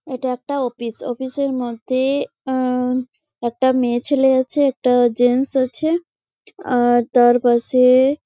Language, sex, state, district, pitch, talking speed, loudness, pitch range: Bengali, female, West Bengal, Jalpaiguri, 255 Hz, 130 wpm, -18 LUFS, 245-265 Hz